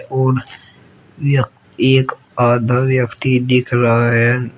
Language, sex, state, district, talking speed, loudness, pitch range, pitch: Hindi, female, Uttar Pradesh, Shamli, 90 wpm, -15 LUFS, 120-130 Hz, 125 Hz